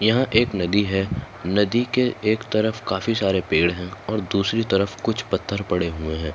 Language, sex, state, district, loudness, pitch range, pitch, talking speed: Hindi, male, Maharashtra, Nagpur, -22 LUFS, 95-110 Hz, 100 Hz, 190 wpm